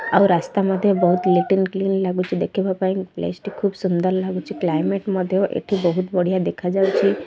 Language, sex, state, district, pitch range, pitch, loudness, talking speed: Odia, female, Odisha, Malkangiri, 185-195 Hz, 190 Hz, -20 LUFS, 175 wpm